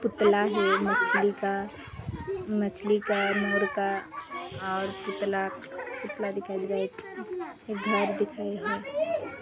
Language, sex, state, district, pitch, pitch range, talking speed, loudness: Hindi, female, Chhattisgarh, Sarguja, 205 Hz, 200-215 Hz, 120 wpm, -29 LUFS